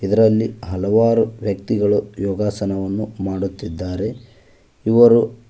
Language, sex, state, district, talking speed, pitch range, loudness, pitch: Kannada, male, Karnataka, Koppal, 65 wpm, 95-110 Hz, -19 LUFS, 105 Hz